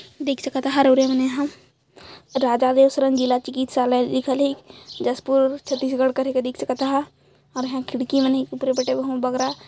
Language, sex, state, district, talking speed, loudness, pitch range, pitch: Hindi, female, Chhattisgarh, Jashpur, 155 wpm, -21 LUFS, 260-270 Hz, 265 Hz